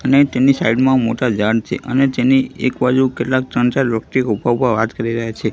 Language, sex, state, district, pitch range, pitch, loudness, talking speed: Gujarati, male, Gujarat, Gandhinagar, 115-130 Hz, 125 Hz, -16 LUFS, 225 wpm